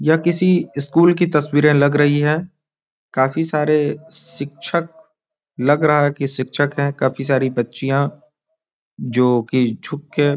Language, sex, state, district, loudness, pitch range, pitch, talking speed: Hindi, male, Bihar, Araria, -18 LUFS, 140-165 Hz, 150 Hz, 145 wpm